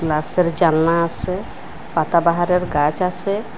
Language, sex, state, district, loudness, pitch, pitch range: Bengali, female, Assam, Hailakandi, -19 LUFS, 170 Hz, 160-180 Hz